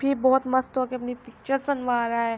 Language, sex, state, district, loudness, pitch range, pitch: Urdu, female, Andhra Pradesh, Anantapur, -25 LUFS, 240-265 Hz, 255 Hz